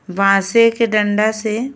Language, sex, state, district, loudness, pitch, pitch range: Bhojpuri, female, Uttar Pradesh, Ghazipur, -15 LUFS, 215 Hz, 200-230 Hz